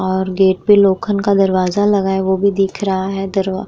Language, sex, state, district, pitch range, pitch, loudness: Hindi, female, Bihar, Vaishali, 190-200 Hz, 195 Hz, -15 LUFS